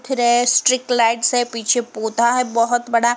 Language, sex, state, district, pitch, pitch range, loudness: Hindi, female, Uttar Pradesh, Varanasi, 240 Hz, 230-245 Hz, -17 LUFS